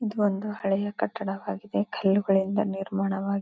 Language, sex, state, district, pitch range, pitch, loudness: Kannada, female, Karnataka, Gulbarga, 195-205 Hz, 195 Hz, -27 LUFS